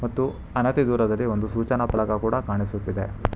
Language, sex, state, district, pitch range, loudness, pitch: Kannada, male, Karnataka, Bangalore, 105-120 Hz, -24 LUFS, 110 Hz